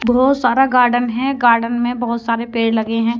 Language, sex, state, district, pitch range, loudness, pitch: Hindi, female, Haryana, Rohtak, 230-245 Hz, -16 LUFS, 240 Hz